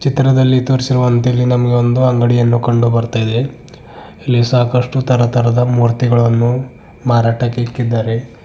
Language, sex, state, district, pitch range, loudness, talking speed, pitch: Kannada, male, Karnataka, Bidar, 120-125 Hz, -13 LUFS, 100 wpm, 120 Hz